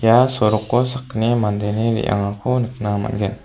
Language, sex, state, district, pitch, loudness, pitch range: Garo, female, Meghalaya, South Garo Hills, 110 Hz, -19 LUFS, 105-125 Hz